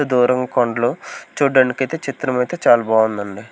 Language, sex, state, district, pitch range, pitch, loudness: Telugu, male, Andhra Pradesh, Sri Satya Sai, 115-130 Hz, 125 Hz, -17 LUFS